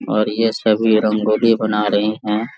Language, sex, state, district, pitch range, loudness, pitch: Hindi, male, Jharkhand, Sahebganj, 105-110 Hz, -17 LUFS, 110 Hz